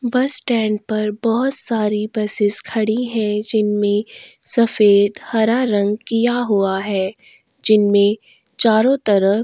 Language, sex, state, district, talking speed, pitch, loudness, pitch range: Hindi, female, Goa, North and South Goa, 120 wpm, 215 Hz, -17 LUFS, 205-235 Hz